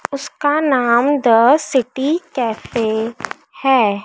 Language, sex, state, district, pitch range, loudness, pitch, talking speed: Hindi, female, Madhya Pradesh, Dhar, 230-285 Hz, -16 LUFS, 255 Hz, 90 wpm